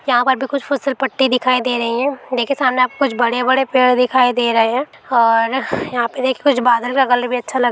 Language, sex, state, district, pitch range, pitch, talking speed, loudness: Hindi, female, Bihar, Begusarai, 245-265 Hz, 255 Hz, 250 wpm, -16 LUFS